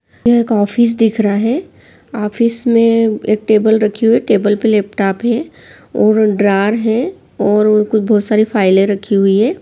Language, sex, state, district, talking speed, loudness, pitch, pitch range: Hindi, female, Bihar, Saran, 170 wpm, -13 LUFS, 215 Hz, 205-230 Hz